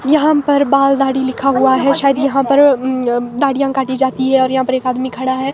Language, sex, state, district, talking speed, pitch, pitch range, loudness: Hindi, female, Himachal Pradesh, Shimla, 250 wpm, 270 Hz, 260-275 Hz, -14 LUFS